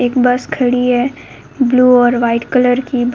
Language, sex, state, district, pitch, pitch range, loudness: Hindi, female, Jharkhand, Garhwa, 250 Hz, 245-255 Hz, -13 LUFS